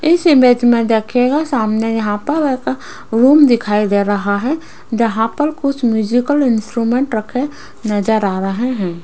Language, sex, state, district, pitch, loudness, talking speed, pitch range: Hindi, female, Rajasthan, Jaipur, 235 Hz, -15 LUFS, 150 wpm, 215-275 Hz